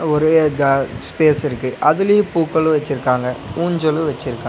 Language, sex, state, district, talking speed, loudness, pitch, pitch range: Tamil, male, Tamil Nadu, Nilgiris, 120 wpm, -17 LUFS, 150 Hz, 135-160 Hz